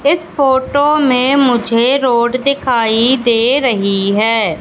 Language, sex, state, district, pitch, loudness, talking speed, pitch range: Hindi, female, Madhya Pradesh, Katni, 250 Hz, -12 LUFS, 115 wpm, 230-275 Hz